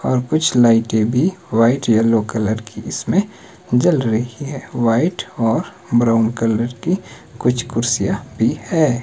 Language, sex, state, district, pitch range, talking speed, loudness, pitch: Hindi, male, Himachal Pradesh, Shimla, 115-140 Hz, 140 wpm, -18 LUFS, 120 Hz